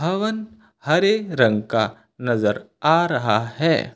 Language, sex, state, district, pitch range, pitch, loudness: Hindi, male, Uttar Pradesh, Lucknow, 110-185 Hz, 135 Hz, -20 LUFS